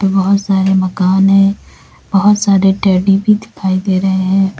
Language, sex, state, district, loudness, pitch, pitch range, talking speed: Hindi, female, Uttar Pradesh, Lalitpur, -12 LUFS, 195 Hz, 190-195 Hz, 155 wpm